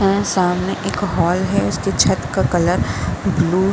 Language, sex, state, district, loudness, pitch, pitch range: Hindi, female, Bihar, Saharsa, -18 LUFS, 190 Hz, 180-195 Hz